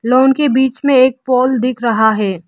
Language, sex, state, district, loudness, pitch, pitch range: Hindi, female, Arunachal Pradesh, Lower Dibang Valley, -13 LUFS, 255 Hz, 230-265 Hz